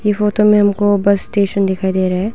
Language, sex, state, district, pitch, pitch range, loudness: Hindi, female, Arunachal Pradesh, Longding, 200 Hz, 190-210 Hz, -14 LUFS